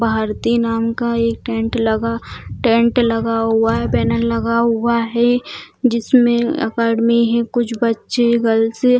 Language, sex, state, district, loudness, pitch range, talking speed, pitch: Hindi, female, Bihar, Purnia, -17 LUFS, 230-235 Hz, 140 wpm, 230 Hz